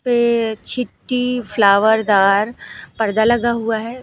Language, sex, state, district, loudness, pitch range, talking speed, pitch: Hindi, female, Uttar Pradesh, Lucknow, -17 LUFS, 215-240 Hz, 120 wpm, 225 Hz